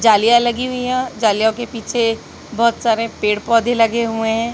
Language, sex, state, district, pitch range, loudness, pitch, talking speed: Hindi, female, Madhya Pradesh, Katni, 225-240 Hz, -17 LUFS, 230 Hz, 185 wpm